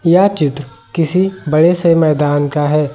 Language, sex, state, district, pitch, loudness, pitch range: Hindi, male, Uttar Pradesh, Lucknow, 155 Hz, -13 LUFS, 145-175 Hz